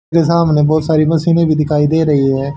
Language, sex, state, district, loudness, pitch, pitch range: Hindi, male, Haryana, Charkhi Dadri, -13 LUFS, 155 Hz, 150-165 Hz